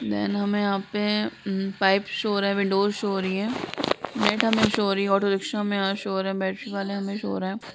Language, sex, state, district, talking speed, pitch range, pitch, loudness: Hindi, female, Bihar, Jamui, 265 wpm, 195-205 Hz, 200 Hz, -25 LUFS